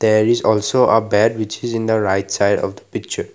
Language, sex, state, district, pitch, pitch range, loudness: English, male, Assam, Kamrup Metropolitan, 110 Hz, 105-115 Hz, -17 LUFS